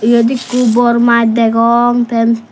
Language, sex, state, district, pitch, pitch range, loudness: Chakma, female, Tripura, Dhalai, 235 Hz, 230-240 Hz, -11 LUFS